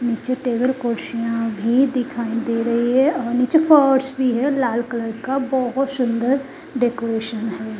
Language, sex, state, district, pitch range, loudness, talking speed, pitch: Hindi, female, Haryana, Charkhi Dadri, 230-265 Hz, -20 LUFS, 160 wpm, 245 Hz